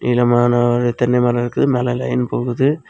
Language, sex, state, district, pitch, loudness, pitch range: Tamil, male, Tamil Nadu, Kanyakumari, 120 Hz, -17 LUFS, 120-125 Hz